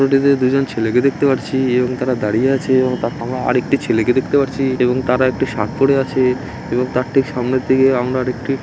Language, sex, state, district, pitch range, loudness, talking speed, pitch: Bengali, male, West Bengal, Malda, 125-135 Hz, -16 LUFS, 220 wpm, 130 Hz